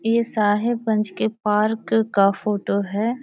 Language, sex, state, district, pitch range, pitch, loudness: Hindi, female, Jharkhand, Sahebganj, 205-225 Hz, 215 Hz, -21 LUFS